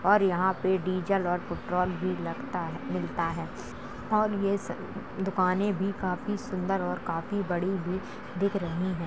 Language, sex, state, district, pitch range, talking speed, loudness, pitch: Hindi, male, Uttar Pradesh, Jalaun, 180-200 Hz, 165 wpm, -30 LUFS, 190 Hz